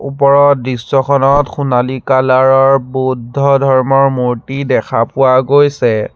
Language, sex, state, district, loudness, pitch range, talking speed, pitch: Assamese, male, Assam, Sonitpur, -11 LUFS, 130-140 Hz, 105 wpm, 135 Hz